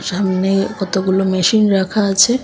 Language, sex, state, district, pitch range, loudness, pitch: Bengali, female, Assam, Hailakandi, 190-205 Hz, -15 LUFS, 195 Hz